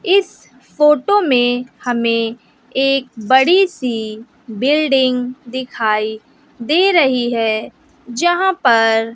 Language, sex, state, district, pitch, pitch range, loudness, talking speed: Hindi, female, Bihar, West Champaran, 255 Hz, 230-295 Hz, -15 LUFS, 90 wpm